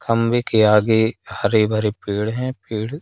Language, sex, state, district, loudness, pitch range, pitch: Hindi, male, Madhya Pradesh, Katni, -19 LUFS, 105-115 Hz, 110 Hz